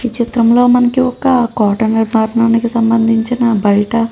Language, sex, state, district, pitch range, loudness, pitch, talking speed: Telugu, female, Andhra Pradesh, Guntur, 225-245 Hz, -12 LUFS, 230 Hz, 145 wpm